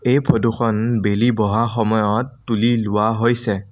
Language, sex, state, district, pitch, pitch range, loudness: Assamese, male, Assam, Sonitpur, 115 Hz, 105-120 Hz, -18 LUFS